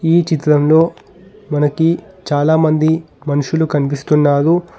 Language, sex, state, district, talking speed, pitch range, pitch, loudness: Telugu, male, Telangana, Hyderabad, 75 wpm, 145-165 Hz, 155 Hz, -15 LUFS